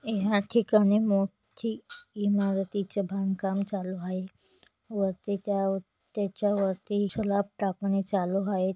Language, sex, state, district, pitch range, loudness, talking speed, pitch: Marathi, female, Maharashtra, Solapur, 195-205 Hz, -29 LUFS, 105 wpm, 200 Hz